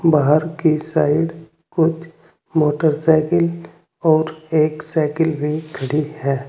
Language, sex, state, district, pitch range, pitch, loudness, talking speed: Hindi, male, Uttar Pradesh, Saharanpur, 150-160 Hz, 155 Hz, -18 LUFS, 100 wpm